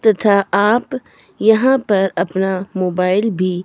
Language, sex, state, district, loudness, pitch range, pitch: Hindi, female, Himachal Pradesh, Shimla, -16 LUFS, 185-220 Hz, 200 Hz